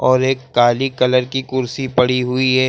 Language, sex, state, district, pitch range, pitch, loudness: Hindi, male, Uttar Pradesh, Lucknow, 125-130 Hz, 130 Hz, -17 LUFS